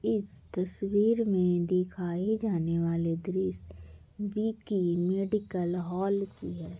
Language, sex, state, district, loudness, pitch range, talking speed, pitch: Hindi, female, Bihar, Gaya, -30 LUFS, 170-205 Hz, 105 wpm, 180 Hz